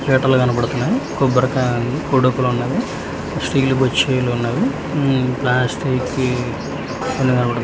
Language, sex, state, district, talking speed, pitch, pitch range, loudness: Telugu, male, Telangana, Hyderabad, 95 wpm, 130 Hz, 125-130 Hz, -18 LUFS